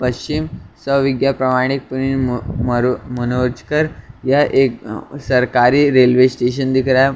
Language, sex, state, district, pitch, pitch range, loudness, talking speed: Hindi, male, Maharashtra, Mumbai Suburban, 130 Hz, 125-135 Hz, -16 LUFS, 150 wpm